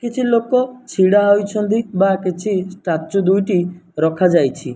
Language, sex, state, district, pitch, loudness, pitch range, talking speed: Odia, male, Odisha, Nuapada, 195 Hz, -17 LUFS, 180-220 Hz, 125 wpm